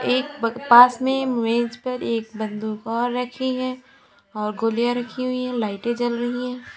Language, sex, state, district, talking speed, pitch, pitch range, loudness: Hindi, female, Uttar Pradesh, Lalitpur, 170 wpm, 240 Hz, 225-255 Hz, -22 LUFS